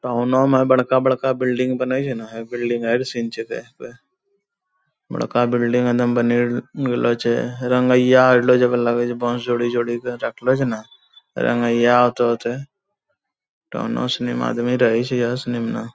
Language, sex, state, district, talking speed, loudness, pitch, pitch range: Angika, male, Bihar, Bhagalpur, 165 wpm, -19 LUFS, 120 Hz, 120-130 Hz